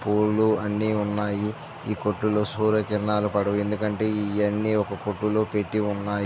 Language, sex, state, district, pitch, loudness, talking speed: Telugu, male, Andhra Pradesh, Visakhapatnam, 105 Hz, -25 LUFS, 145 wpm